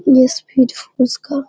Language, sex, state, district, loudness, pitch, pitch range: Hindi, female, Bihar, Darbhanga, -15 LUFS, 260 Hz, 255-280 Hz